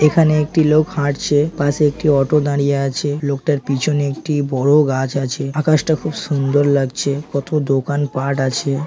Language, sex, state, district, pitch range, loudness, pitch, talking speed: Bengali, male, West Bengal, Jhargram, 140-150 Hz, -17 LUFS, 145 Hz, 150 wpm